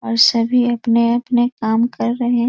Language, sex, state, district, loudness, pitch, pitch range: Hindi, female, Bihar, East Champaran, -16 LUFS, 235 Hz, 230-240 Hz